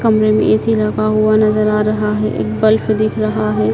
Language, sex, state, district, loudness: Hindi, male, Madhya Pradesh, Dhar, -14 LUFS